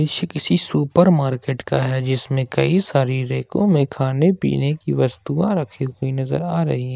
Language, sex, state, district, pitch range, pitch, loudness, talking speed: Hindi, male, Jharkhand, Ranchi, 130-165 Hz, 140 Hz, -19 LUFS, 175 wpm